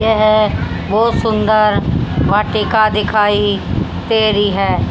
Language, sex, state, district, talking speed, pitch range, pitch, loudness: Hindi, female, Haryana, Rohtak, 100 wpm, 205-215 Hz, 215 Hz, -14 LUFS